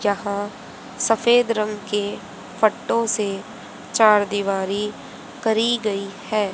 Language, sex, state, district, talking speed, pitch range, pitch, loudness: Hindi, female, Haryana, Rohtak, 100 wpm, 205-225 Hz, 210 Hz, -21 LUFS